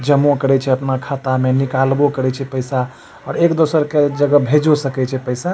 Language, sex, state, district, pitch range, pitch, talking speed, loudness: Maithili, male, Bihar, Supaul, 130-145 Hz, 135 Hz, 225 wpm, -16 LUFS